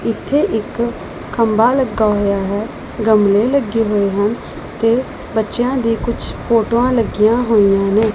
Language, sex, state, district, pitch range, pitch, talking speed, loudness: Punjabi, female, Punjab, Pathankot, 210-235 Hz, 225 Hz, 130 wpm, -16 LUFS